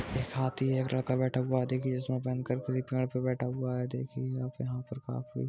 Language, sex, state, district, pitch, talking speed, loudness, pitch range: Hindi, male, Uttar Pradesh, Budaun, 130 Hz, 220 wpm, -33 LUFS, 125-130 Hz